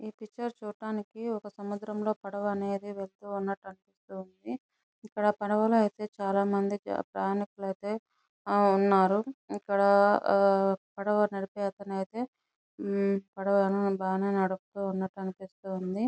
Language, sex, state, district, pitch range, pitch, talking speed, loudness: Telugu, female, Andhra Pradesh, Chittoor, 195-210 Hz, 200 Hz, 110 wpm, -30 LUFS